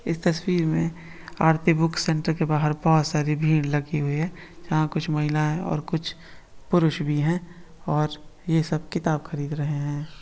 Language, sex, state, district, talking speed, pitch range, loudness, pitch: Marwari, female, Rajasthan, Nagaur, 170 wpm, 150-165 Hz, -24 LUFS, 160 Hz